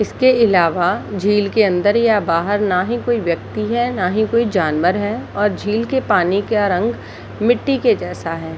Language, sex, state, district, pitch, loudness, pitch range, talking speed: Hindi, female, Bihar, Jahanabad, 210 Hz, -17 LUFS, 180-230 Hz, 195 wpm